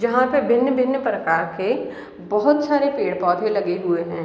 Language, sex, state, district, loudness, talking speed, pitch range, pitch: Hindi, female, Bihar, East Champaran, -20 LUFS, 155 wpm, 180-265 Hz, 225 Hz